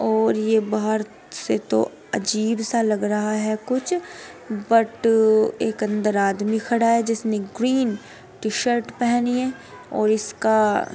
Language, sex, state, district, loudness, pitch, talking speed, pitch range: Hindi, female, Uttar Pradesh, Etah, -21 LUFS, 220 Hz, 135 wpm, 215-235 Hz